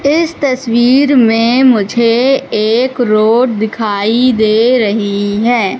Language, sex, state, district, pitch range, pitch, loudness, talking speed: Hindi, female, Madhya Pradesh, Katni, 215-255 Hz, 235 Hz, -11 LUFS, 105 wpm